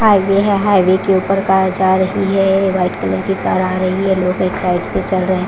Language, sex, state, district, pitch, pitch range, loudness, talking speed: Hindi, female, Punjab, Fazilka, 190 Hz, 185-195 Hz, -15 LUFS, 265 wpm